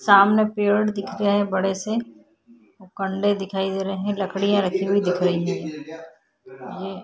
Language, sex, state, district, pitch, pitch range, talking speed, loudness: Hindi, female, Uttar Pradesh, Hamirpur, 195 Hz, 190-205 Hz, 180 wpm, -22 LUFS